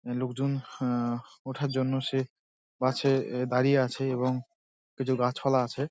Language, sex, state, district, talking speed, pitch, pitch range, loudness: Bengali, male, West Bengal, Dakshin Dinajpur, 140 wpm, 130 Hz, 125-135 Hz, -29 LUFS